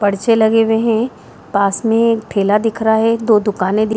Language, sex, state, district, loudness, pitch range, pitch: Hindi, female, Bihar, Jahanabad, -15 LUFS, 210-225 Hz, 220 Hz